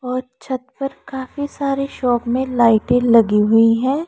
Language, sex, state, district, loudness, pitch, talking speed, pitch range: Hindi, female, Punjab, Pathankot, -17 LUFS, 255 Hz, 160 wpm, 235-275 Hz